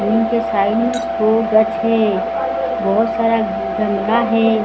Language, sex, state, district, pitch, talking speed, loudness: Hindi, female, Odisha, Sambalpur, 225 Hz, 115 wpm, -17 LUFS